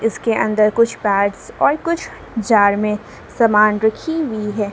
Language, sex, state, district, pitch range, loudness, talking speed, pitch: Hindi, female, Jharkhand, Palamu, 210-230 Hz, -17 LUFS, 150 wpm, 215 Hz